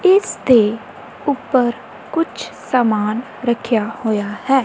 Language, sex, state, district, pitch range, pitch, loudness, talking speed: Punjabi, female, Punjab, Kapurthala, 220-265 Hz, 240 Hz, -18 LUFS, 105 wpm